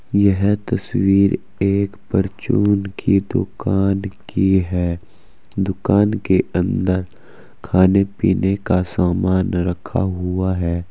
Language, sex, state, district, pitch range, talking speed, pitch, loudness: Hindi, male, Uttar Pradesh, Saharanpur, 90-100 Hz, 100 wpm, 95 Hz, -18 LUFS